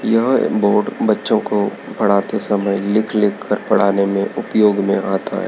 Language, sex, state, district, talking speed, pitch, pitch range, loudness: Hindi, male, Madhya Pradesh, Dhar, 165 wpm, 100 Hz, 100-105 Hz, -17 LUFS